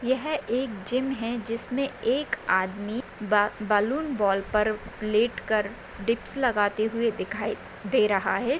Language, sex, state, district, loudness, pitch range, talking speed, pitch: Hindi, female, Maharashtra, Solapur, -27 LUFS, 205-255 Hz, 140 wpm, 225 Hz